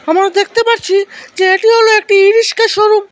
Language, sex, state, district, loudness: Bengali, male, Assam, Hailakandi, -10 LUFS